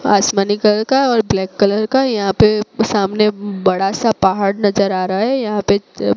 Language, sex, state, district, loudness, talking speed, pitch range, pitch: Hindi, female, Gujarat, Gandhinagar, -15 LUFS, 195 wpm, 195-215 Hz, 205 Hz